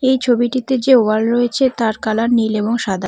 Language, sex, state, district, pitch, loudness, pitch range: Bengali, female, West Bengal, Cooch Behar, 235 Hz, -16 LUFS, 220-255 Hz